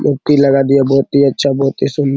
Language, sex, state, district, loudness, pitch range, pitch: Hindi, male, Bihar, Araria, -12 LUFS, 135-140 Hz, 140 Hz